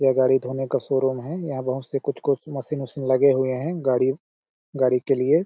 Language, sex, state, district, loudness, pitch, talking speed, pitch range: Hindi, male, Chhattisgarh, Balrampur, -23 LUFS, 135 Hz, 210 wpm, 130-140 Hz